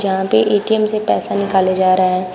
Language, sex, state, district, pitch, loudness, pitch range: Hindi, female, Uttar Pradesh, Shamli, 190 Hz, -15 LUFS, 185-205 Hz